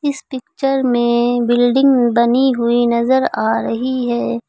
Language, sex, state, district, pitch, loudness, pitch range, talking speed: Hindi, female, Uttar Pradesh, Lucknow, 245 Hz, -15 LUFS, 235-260 Hz, 135 wpm